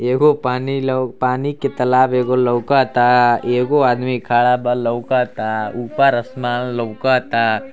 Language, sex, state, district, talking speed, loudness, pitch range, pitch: Bhojpuri, male, Uttar Pradesh, Ghazipur, 145 wpm, -17 LUFS, 120-130 Hz, 125 Hz